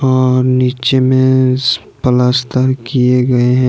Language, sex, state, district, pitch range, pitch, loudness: Hindi, male, Jharkhand, Deoghar, 125-130 Hz, 130 Hz, -12 LUFS